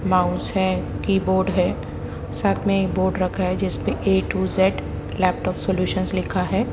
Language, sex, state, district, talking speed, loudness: Hindi, female, Haryana, Jhajjar, 160 wpm, -22 LUFS